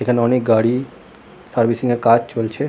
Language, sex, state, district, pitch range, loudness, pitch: Bengali, male, West Bengal, Kolkata, 115-130 Hz, -17 LUFS, 120 Hz